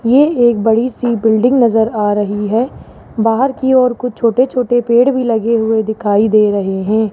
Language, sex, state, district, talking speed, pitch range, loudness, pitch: Hindi, male, Rajasthan, Jaipur, 195 wpm, 220-250 Hz, -13 LUFS, 230 Hz